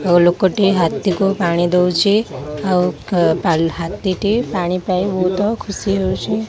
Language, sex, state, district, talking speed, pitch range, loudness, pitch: Odia, female, Odisha, Khordha, 110 wpm, 175-200 Hz, -17 LUFS, 185 Hz